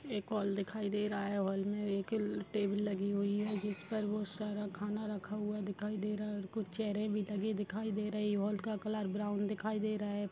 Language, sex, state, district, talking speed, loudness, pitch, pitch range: Hindi, female, Uttar Pradesh, Gorakhpur, 230 wpm, -37 LUFS, 210 Hz, 205-210 Hz